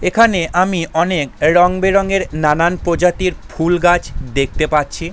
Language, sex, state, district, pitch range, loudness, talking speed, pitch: Bengali, male, West Bengal, Jalpaiguri, 155-180 Hz, -15 LUFS, 105 wpm, 175 Hz